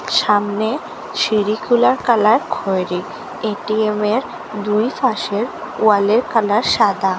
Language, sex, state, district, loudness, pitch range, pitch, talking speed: Bengali, female, Assam, Hailakandi, -17 LUFS, 205-230 Hz, 215 Hz, 85 wpm